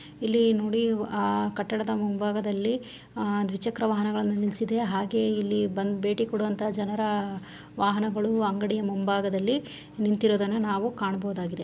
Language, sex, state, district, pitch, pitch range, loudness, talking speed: Kannada, female, Karnataka, Shimoga, 210 Hz, 200-220 Hz, -27 LUFS, 110 wpm